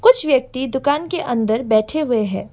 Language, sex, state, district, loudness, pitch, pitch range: Hindi, female, Assam, Kamrup Metropolitan, -18 LUFS, 265 Hz, 230-310 Hz